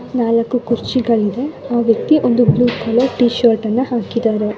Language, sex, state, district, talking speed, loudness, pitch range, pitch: Kannada, female, Karnataka, Shimoga, 145 wpm, -15 LUFS, 230-245 Hz, 240 Hz